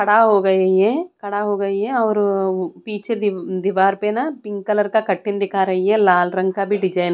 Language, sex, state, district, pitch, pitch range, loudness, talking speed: Hindi, female, Odisha, Khordha, 200 Hz, 190-210 Hz, -18 LUFS, 225 wpm